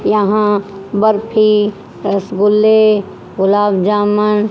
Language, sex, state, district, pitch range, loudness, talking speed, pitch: Hindi, female, Haryana, Jhajjar, 200-215 Hz, -13 LUFS, 65 wpm, 210 Hz